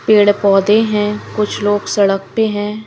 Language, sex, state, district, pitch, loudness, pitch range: Hindi, female, Himachal Pradesh, Shimla, 210 Hz, -14 LUFS, 205-215 Hz